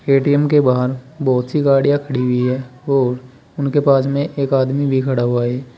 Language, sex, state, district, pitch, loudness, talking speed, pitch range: Hindi, male, Uttar Pradesh, Saharanpur, 135 Hz, -17 LUFS, 195 wpm, 125-140 Hz